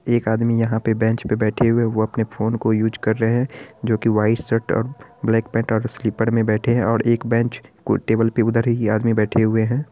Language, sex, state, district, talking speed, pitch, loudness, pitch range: Hindi, male, Bihar, Araria, 235 wpm, 115 Hz, -20 LUFS, 110-115 Hz